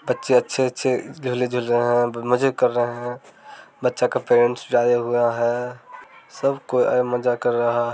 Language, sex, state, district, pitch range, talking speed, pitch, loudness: Maithili, male, Bihar, Samastipur, 120-125 Hz, 160 wpm, 120 Hz, -21 LUFS